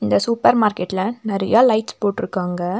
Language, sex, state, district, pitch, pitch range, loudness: Tamil, female, Tamil Nadu, Nilgiris, 200 Hz, 180-220 Hz, -18 LUFS